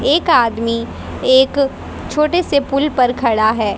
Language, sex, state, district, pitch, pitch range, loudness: Hindi, female, Haryana, Jhajjar, 260 Hz, 230-280 Hz, -15 LUFS